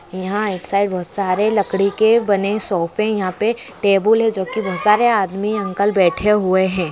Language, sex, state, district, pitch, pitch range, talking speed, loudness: Hindi, female, Andhra Pradesh, Chittoor, 200 Hz, 185-215 Hz, 200 wpm, -17 LUFS